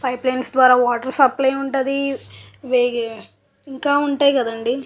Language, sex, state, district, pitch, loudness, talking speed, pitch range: Telugu, female, Andhra Pradesh, Visakhapatnam, 260 Hz, -18 LUFS, 125 wpm, 245-275 Hz